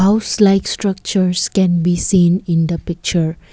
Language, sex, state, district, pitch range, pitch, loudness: English, female, Assam, Kamrup Metropolitan, 175-195 Hz, 180 Hz, -15 LUFS